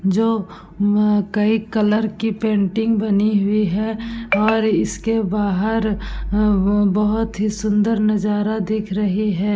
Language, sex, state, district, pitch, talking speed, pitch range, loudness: Hindi, female, Bihar, Vaishali, 210 Hz, 125 wpm, 205-220 Hz, -19 LUFS